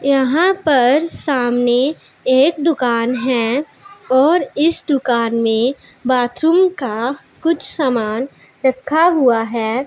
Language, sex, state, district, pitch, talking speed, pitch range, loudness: Hindi, female, Punjab, Pathankot, 265 Hz, 105 wpm, 245-310 Hz, -16 LUFS